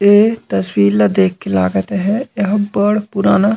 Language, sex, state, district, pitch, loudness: Chhattisgarhi, male, Chhattisgarh, Raigarh, 200 Hz, -15 LUFS